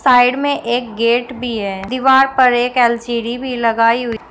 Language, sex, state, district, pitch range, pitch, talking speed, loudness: Hindi, female, Uttar Pradesh, Shamli, 230-255 Hz, 245 Hz, 180 wpm, -15 LUFS